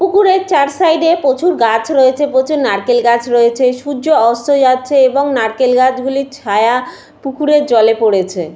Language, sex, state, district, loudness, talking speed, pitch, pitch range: Bengali, female, West Bengal, Paschim Medinipur, -12 LUFS, 135 wpm, 260 Hz, 235-290 Hz